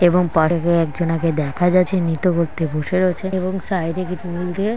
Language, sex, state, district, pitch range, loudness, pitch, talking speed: Bengali, female, West Bengal, North 24 Parganas, 165-185 Hz, -19 LUFS, 175 Hz, 175 wpm